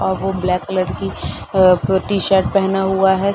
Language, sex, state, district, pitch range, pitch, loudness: Hindi, female, Uttar Pradesh, Gorakhpur, 180-195 Hz, 190 Hz, -17 LUFS